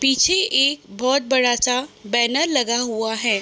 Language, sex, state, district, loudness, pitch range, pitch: Hindi, female, Uttar Pradesh, Budaun, -19 LUFS, 235-275 Hz, 250 Hz